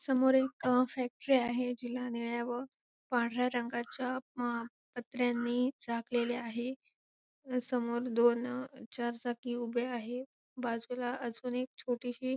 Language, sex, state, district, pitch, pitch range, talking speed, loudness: Marathi, female, Maharashtra, Sindhudurg, 245 Hz, 240-255 Hz, 110 wpm, -35 LUFS